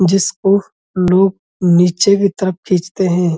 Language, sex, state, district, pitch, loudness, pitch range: Hindi, male, Uttar Pradesh, Budaun, 185 Hz, -14 LUFS, 180-195 Hz